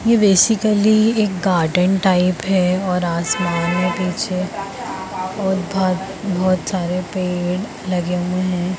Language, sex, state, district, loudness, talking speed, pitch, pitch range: Hindi, female, Bihar, Jamui, -18 LUFS, 115 wpm, 185 Hz, 180-195 Hz